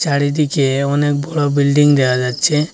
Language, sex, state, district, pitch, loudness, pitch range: Bengali, male, Assam, Hailakandi, 145 Hz, -15 LUFS, 140-145 Hz